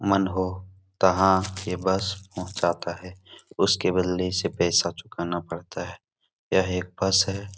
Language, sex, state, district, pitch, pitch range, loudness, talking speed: Hindi, male, Bihar, Supaul, 95 Hz, 90-95 Hz, -25 LUFS, 140 wpm